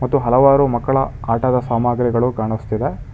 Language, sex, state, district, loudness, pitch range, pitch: Kannada, male, Karnataka, Bangalore, -17 LUFS, 115-135 Hz, 125 Hz